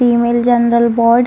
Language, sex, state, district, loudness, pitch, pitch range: Hindi, female, Bihar, Saran, -12 LUFS, 235 Hz, 235-240 Hz